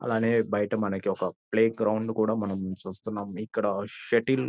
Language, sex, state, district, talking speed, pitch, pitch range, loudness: Telugu, male, Andhra Pradesh, Guntur, 160 wpm, 110 Hz, 100-115 Hz, -28 LUFS